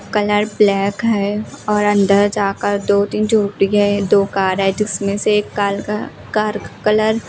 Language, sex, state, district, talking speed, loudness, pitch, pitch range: Hindi, female, Himachal Pradesh, Shimla, 175 wpm, -16 LUFS, 205 Hz, 200-210 Hz